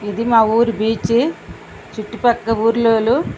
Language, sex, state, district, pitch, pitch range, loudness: Telugu, female, Andhra Pradesh, Srikakulam, 225 Hz, 220-235 Hz, -16 LUFS